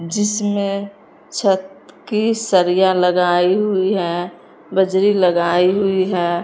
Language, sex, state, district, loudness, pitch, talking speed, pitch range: Hindi, male, Punjab, Fazilka, -17 LUFS, 190 Hz, 100 wpm, 180-200 Hz